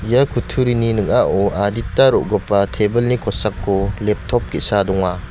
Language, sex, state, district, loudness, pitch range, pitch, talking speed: Garo, male, Meghalaya, West Garo Hills, -17 LUFS, 100-120 Hz, 105 Hz, 115 wpm